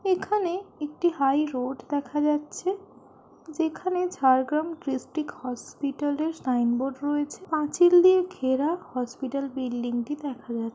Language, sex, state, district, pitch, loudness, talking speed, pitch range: Bengali, female, West Bengal, Jhargram, 295 Hz, -26 LUFS, 100 wpm, 260-345 Hz